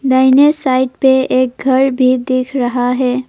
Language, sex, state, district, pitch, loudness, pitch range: Hindi, female, Assam, Kamrup Metropolitan, 260 Hz, -13 LUFS, 255-265 Hz